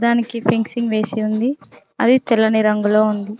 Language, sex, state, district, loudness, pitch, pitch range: Telugu, female, Telangana, Mahabubabad, -18 LUFS, 220 Hz, 215-235 Hz